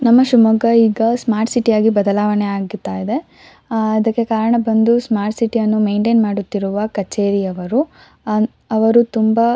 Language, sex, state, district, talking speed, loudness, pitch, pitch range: Kannada, female, Karnataka, Shimoga, 130 wpm, -16 LUFS, 220 Hz, 210-230 Hz